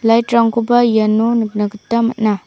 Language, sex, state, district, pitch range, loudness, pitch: Garo, female, Meghalaya, South Garo Hills, 215-235 Hz, -15 LUFS, 230 Hz